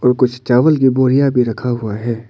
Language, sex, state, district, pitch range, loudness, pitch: Hindi, male, Arunachal Pradesh, Papum Pare, 120-130 Hz, -15 LUFS, 125 Hz